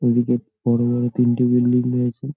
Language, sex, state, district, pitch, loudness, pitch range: Bengali, male, West Bengal, North 24 Parganas, 120 Hz, -19 LUFS, 120-125 Hz